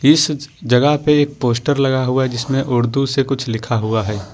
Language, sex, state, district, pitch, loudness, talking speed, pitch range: Hindi, male, Jharkhand, Ranchi, 135 Hz, -17 LUFS, 195 wpm, 120-145 Hz